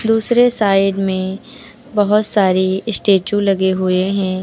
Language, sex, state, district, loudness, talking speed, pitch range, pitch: Hindi, female, Uttar Pradesh, Lucknow, -15 LUFS, 120 wpm, 190-225 Hz, 195 Hz